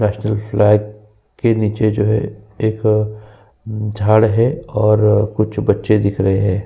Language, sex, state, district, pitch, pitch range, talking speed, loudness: Hindi, male, Uttar Pradesh, Jyotiba Phule Nagar, 105 Hz, 105-110 Hz, 135 wpm, -16 LUFS